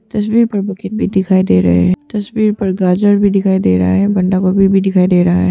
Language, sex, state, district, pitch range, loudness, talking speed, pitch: Hindi, female, Arunachal Pradesh, Papum Pare, 180-205 Hz, -13 LUFS, 250 wpm, 190 Hz